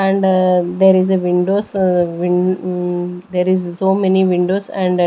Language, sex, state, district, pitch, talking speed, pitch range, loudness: English, female, Maharashtra, Gondia, 185 Hz, 190 wpm, 180-190 Hz, -15 LUFS